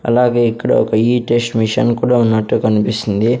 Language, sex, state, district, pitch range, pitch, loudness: Telugu, male, Andhra Pradesh, Sri Satya Sai, 110-120 Hz, 115 Hz, -14 LUFS